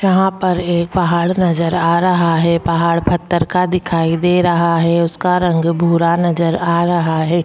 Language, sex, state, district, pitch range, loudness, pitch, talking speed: Hindi, male, Delhi, New Delhi, 170-180 Hz, -15 LUFS, 170 Hz, 175 wpm